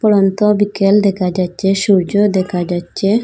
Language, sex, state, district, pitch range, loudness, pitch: Bengali, female, Assam, Hailakandi, 185-205 Hz, -14 LUFS, 195 Hz